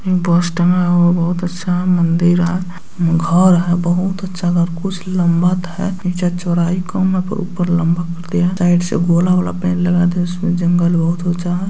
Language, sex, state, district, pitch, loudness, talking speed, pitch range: Hindi, male, Bihar, Kishanganj, 175 Hz, -16 LUFS, 175 wpm, 175-180 Hz